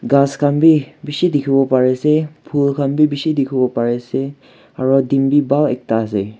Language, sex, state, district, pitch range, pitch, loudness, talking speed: Nagamese, male, Nagaland, Kohima, 130-145 Hz, 140 Hz, -16 LUFS, 170 wpm